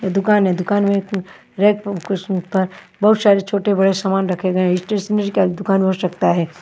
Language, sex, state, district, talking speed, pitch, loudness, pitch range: Hindi, female, Himachal Pradesh, Shimla, 170 wpm, 195 Hz, -18 LUFS, 185-205 Hz